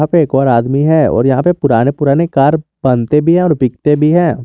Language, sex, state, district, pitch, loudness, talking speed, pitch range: Hindi, male, Jharkhand, Garhwa, 150 Hz, -12 LUFS, 255 wpm, 135-160 Hz